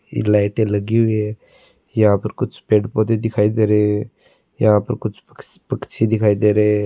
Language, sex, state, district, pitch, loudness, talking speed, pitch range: Marwari, male, Rajasthan, Churu, 105 Hz, -18 LUFS, 200 wpm, 105-110 Hz